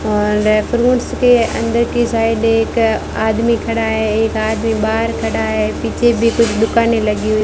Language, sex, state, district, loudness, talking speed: Hindi, female, Rajasthan, Bikaner, -15 LUFS, 170 wpm